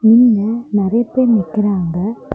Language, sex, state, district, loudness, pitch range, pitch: Tamil, female, Tamil Nadu, Kanyakumari, -15 LUFS, 205-235 Hz, 220 Hz